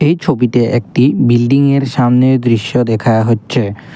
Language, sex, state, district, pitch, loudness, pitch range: Bengali, male, Assam, Kamrup Metropolitan, 120 Hz, -12 LUFS, 115-130 Hz